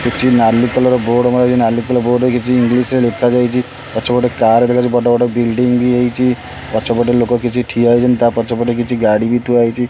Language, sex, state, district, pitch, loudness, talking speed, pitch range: Odia, male, Odisha, Khordha, 120 Hz, -13 LUFS, 230 wpm, 120-125 Hz